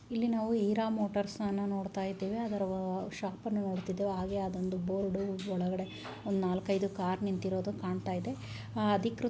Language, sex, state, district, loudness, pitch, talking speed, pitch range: Kannada, female, Karnataka, Raichur, -34 LUFS, 195 Hz, 135 wpm, 185-205 Hz